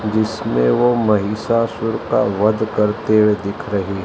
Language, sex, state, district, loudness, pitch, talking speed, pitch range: Hindi, male, Maharashtra, Mumbai Suburban, -17 LUFS, 105 Hz, 135 wpm, 100-110 Hz